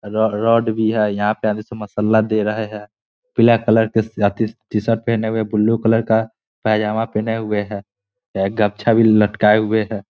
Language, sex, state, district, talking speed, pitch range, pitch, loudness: Hindi, male, Bihar, Muzaffarpur, 190 wpm, 105-110 Hz, 110 Hz, -18 LUFS